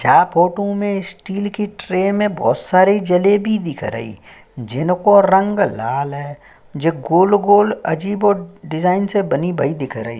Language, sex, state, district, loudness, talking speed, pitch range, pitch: Hindi, male, Uttarakhand, Tehri Garhwal, -17 LUFS, 155 wpm, 145-200 Hz, 185 Hz